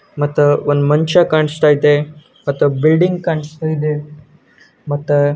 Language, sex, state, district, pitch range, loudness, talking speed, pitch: Kannada, male, Karnataka, Gulbarga, 145-155 Hz, -15 LUFS, 110 wpm, 150 Hz